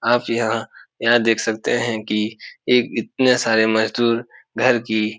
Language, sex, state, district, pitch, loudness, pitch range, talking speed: Hindi, male, Bihar, Supaul, 115 Hz, -19 LUFS, 110-120 Hz, 160 wpm